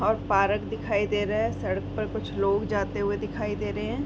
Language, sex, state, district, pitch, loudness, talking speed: Hindi, female, Uttar Pradesh, Varanasi, 105 Hz, -27 LUFS, 235 wpm